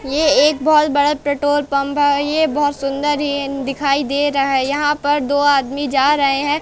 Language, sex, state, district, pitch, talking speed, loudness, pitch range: Hindi, female, Madhya Pradesh, Katni, 285 Hz, 200 wpm, -16 LUFS, 275-290 Hz